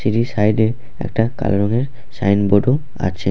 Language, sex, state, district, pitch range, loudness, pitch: Bengali, male, West Bengal, Purulia, 100-125 Hz, -18 LUFS, 110 Hz